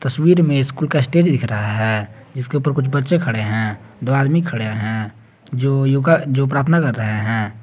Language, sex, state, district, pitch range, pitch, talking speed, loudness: Hindi, male, Jharkhand, Garhwa, 110-145 Hz, 135 Hz, 190 wpm, -18 LUFS